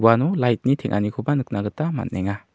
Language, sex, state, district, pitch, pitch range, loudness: Garo, male, Meghalaya, South Garo Hills, 120 Hz, 105-135 Hz, -22 LUFS